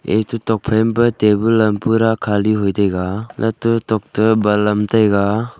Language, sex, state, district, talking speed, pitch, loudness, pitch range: Wancho, male, Arunachal Pradesh, Longding, 150 wpm, 110 Hz, -16 LUFS, 105-115 Hz